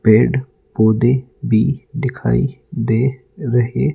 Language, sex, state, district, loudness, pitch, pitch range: Hindi, male, Rajasthan, Jaipur, -17 LUFS, 125 Hz, 110-130 Hz